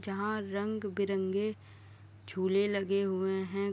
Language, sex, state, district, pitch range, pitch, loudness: Hindi, female, Bihar, East Champaran, 190-200 Hz, 195 Hz, -33 LUFS